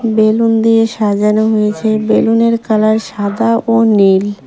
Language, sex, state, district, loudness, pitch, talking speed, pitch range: Bengali, female, West Bengal, Cooch Behar, -12 LUFS, 220 Hz, 120 wpm, 210-225 Hz